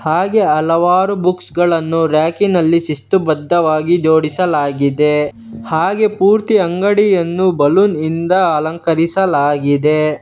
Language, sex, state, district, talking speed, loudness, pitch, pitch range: Kannada, male, Karnataka, Bangalore, 90 wpm, -14 LUFS, 165 Hz, 155-185 Hz